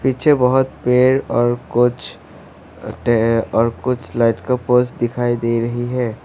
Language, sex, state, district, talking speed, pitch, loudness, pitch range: Hindi, male, Assam, Sonitpur, 135 wpm, 120 Hz, -17 LUFS, 115-125 Hz